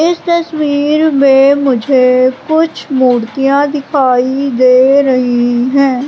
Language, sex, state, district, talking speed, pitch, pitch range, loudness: Hindi, female, Madhya Pradesh, Katni, 100 wpm, 270 Hz, 255-290 Hz, -10 LUFS